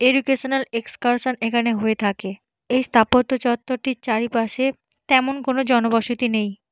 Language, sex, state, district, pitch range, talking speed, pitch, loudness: Bengali, female, Jharkhand, Jamtara, 225-260 Hz, 115 wpm, 245 Hz, -21 LUFS